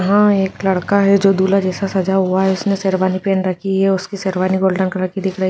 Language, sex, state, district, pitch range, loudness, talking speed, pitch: Hindi, female, Uttar Pradesh, Jyotiba Phule Nagar, 185-195 Hz, -16 LUFS, 260 wpm, 190 Hz